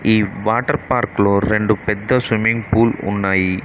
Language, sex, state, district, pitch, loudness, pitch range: Telugu, male, Telangana, Mahabubabad, 110 Hz, -17 LUFS, 100-115 Hz